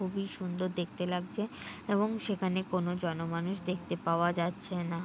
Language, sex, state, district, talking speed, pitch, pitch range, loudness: Bengali, female, West Bengal, Kolkata, 155 wpm, 180 Hz, 175-195 Hz, -34 LUFS